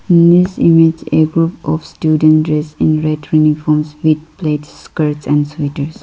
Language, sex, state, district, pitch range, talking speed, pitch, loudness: English, female, Arunachal Pradesh, Lower Dibang Valley, 150-160 Hz, 160 wpm, 155 Hz, -13 LUFS